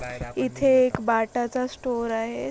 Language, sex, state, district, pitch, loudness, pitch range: Marathi, female, Maharashtra, Chandrapur, 235 Hz, -24 LUFS, 215-255 Hz